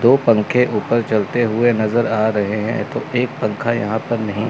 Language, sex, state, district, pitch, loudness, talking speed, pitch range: Hindi, male, Chandigarh, Chandigarh, 110 Hz, -18 LUFS, 200 wpm, 110-120 Hz